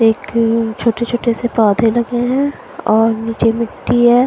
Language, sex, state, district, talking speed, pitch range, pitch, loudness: Hindi, female, Punjab, Fazilka, 155 wpm, 225-240 Hz, 230 Hz, -15 LUFS